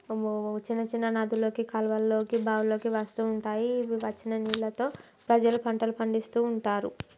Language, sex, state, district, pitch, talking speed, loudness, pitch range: Telugu, female, Telangana, Nalgonda, 225 Hz, 100 wpm, -29 LUFS, 220-230 Hz